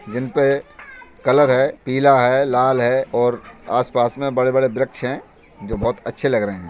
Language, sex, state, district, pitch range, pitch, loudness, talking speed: Hindi, male, Uttar Pradesh, Budaun, 120-135 Hz, 130 Hz, -18 LUFS, 190 wpm